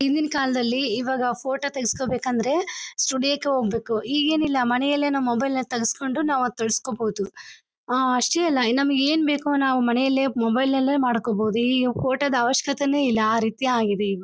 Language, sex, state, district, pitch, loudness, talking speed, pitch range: Kannada, female, Karnataka, Bellary, 260 Hz, -22 LUFS, 155 wpm, 240-280 Hz